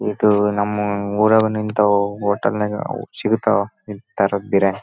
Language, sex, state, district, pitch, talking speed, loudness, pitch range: Kannada, male, Karnataka, Raichur, 105 Hz, 125 wpm, -19 LUFS, 100-105 Hz